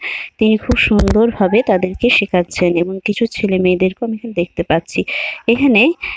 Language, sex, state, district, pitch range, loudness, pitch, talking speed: Bengali, female, West Bengal, Malda, 185-235 Hz, -15 LUFS, 215 Hz, 155 wpm